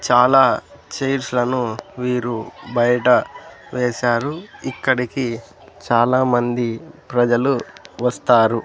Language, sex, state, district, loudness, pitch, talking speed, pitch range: Telugu, male, Andhra Pradesh, Sri Satya Sai, -19 LUFS, 125 Hz, 70 wpm, 120-130 Hz